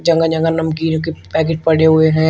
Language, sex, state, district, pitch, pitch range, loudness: Hindi, male, Uttar Pradesh, Shamli, 160 Hz, 160-165 Hz, -15 LUFS